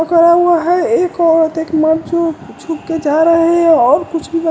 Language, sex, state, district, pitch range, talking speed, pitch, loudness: Hindi, male, Bihar, West Champaran, 320-340 Hz, 215 wpm, 330 Hz, -12 LUFS